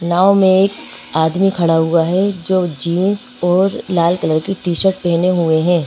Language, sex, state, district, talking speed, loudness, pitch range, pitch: Hindi, female, Madhya Pradesh, Bhopal, 175 wpm, -15 LUFS, 170-190 Hz, 180 Hz